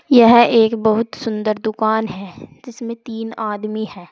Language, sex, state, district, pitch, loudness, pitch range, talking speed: Hindi, female, Uttar Pradesh, Saharanpur, 220 Hz, -17 LUFS, 215-235 Hz, 145 wpm